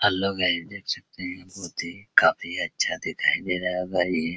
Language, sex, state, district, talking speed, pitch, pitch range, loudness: Hindi, male, Bihar, Araria, 190 wpm, 90 Hz, 90-95 Hz, -25 LUFS